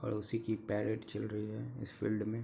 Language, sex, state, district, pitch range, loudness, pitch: Hindi, male, Uttar Pradesh, Hamirpur, 105-110 Hz, -39 LUFS, 110 Hz